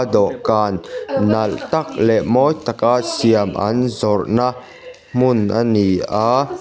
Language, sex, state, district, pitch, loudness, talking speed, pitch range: Mizo, male, Mizoram, Aizawl, 115 Hz, -17 LUFS, 120 wpm, 105-125 Hz